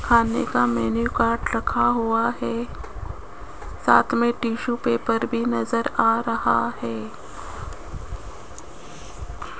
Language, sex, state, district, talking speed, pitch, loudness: Hindi, female, Rajasthan, Jaipur, 100 wpm, 225 Hz, -22 LUFS